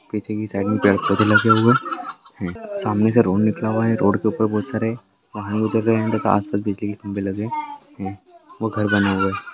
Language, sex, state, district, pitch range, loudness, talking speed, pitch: Hindi, male, Andhra Pradesh, Krishna, 100-115 Hz, -20 LUFS, 195 wpm, 110 Hz